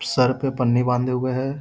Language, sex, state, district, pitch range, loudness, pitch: Hindi, male, Bihar, Darbhanga, 125-135 Hz, -21 LUFS, 125 Hz